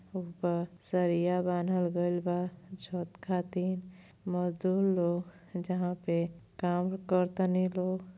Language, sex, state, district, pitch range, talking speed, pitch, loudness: Bhojpuri, female, Uttar Pradesh, Gorakhpur, 175-185 Hz, 105 wpm, 180 Hz, -32 LUFS